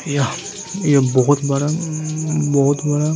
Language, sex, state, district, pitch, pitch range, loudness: Hindi, male, Uttar Pradesh, Muzaffarnagar, 150 Hz, 140-155 Hz, -18 LUFS